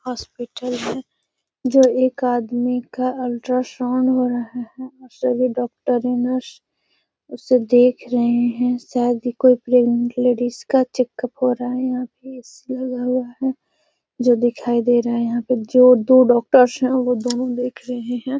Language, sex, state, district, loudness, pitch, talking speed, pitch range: Hindi, female, Bihar, Gaya, -19 LUFS, 250 Hz, 155 wpm, 245-255 Hz